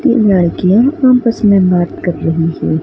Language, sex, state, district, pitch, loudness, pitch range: Hindi, female, Madhya Pradesh, Dhar, 190 Hz, -12 LUFS, 170-235 Hz